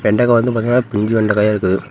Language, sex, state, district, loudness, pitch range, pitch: Tamil, male, Tamil Nadu, Namakkal, -15 LUFS, 105-120 Hz, 110 Hz